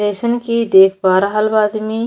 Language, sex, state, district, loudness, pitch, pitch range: Bhojpuri, female, Uttar Pradesh, Deoria, -14 LUFS, 215 Hz, 195-230 Hz